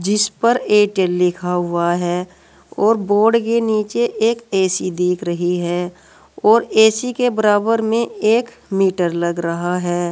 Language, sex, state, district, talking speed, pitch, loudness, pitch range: Hindi, female, Uttar Pradesh, Saharanpur, 150 wpm, 195 Hz, -17 LUFS, 175-225 Hz